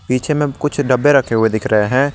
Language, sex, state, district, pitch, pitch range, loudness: Hindi, male, Jharkhand, Garhwa, 130 Hz, 115-145 Hz, -15 LUFS